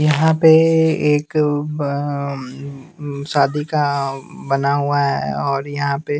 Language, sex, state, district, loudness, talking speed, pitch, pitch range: Hindi, male, Bihar, West Champaran, -18 LUFS, 115 wpm, 145 Hz, 140-150 Hz